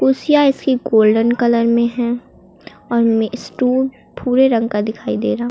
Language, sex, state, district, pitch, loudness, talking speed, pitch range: Hindi, female, Uttar Pradesh, Lucknow, 235 Hz, -16 LUFS, 165 wpm, 220-260 Hz